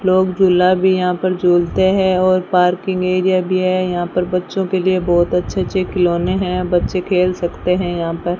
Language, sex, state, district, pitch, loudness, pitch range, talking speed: Hindi, female, Rajasthan, Bikaner, 185 Hz, -16 LUFS, 180-185 Hz, 200 wpm